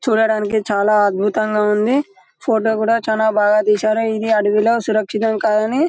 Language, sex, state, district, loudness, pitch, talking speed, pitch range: Telugu, male, Telangana, Karimnagar, -16 LUFS, 215 Hz, 145 wpm, 210-220 Hz